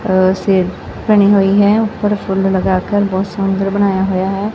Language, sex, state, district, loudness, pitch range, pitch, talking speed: Punjabi, female, Punjab, Fazilka, -14 LUFS, 190-205 Hz, 195 Hz, 160 wpm